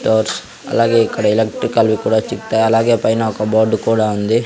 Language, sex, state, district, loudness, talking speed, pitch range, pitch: Telugu, male, Andhra Pradesh, Sri Satya Sai, -15 LUFS, 175 wpm, 110-115 Hz, 110 Hz